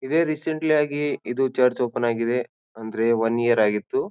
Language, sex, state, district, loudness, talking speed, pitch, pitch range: Kannada, male, Karnataka, Bijapur, -23 LUFS, 160 wpm, 125 Hz, 115-150 Hz